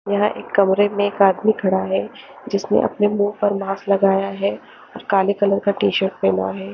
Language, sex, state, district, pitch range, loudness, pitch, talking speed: Hindi, female, Haryana, Charkhi Dadri, 195-205 Hz, -19 LUFS, 200 Hz, 205 wpm